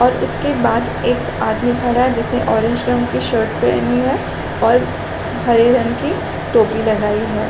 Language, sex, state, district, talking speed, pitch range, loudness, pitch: Hindi, female, Chhattisgarh, Raigarh, 170 wpm, 220-245 Hz, -16 LUFS, 235 Hz